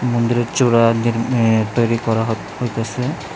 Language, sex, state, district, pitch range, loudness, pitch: Bengali, male, Tripura, West Tripura, 115-120 Hz, -18 LUFS, 115 Hz